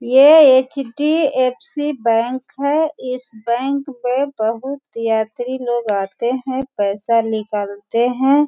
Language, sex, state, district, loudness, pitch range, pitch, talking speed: Hindi, female, Bihar, Sitamarhi, -17 LUFS, 230-275 Hz, 255 Hz, 105 wpm